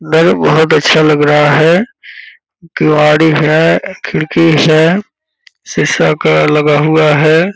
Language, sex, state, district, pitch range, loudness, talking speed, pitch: Hindi, male, Bihar, Purnia, 150-165 Hz, -9 LUFS, 120 wpm, 155 Hz